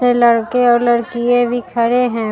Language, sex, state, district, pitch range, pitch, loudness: Hindi, female, Bihar, Vaishali, 235-245 Hz, 240 Hz, -14 LUFS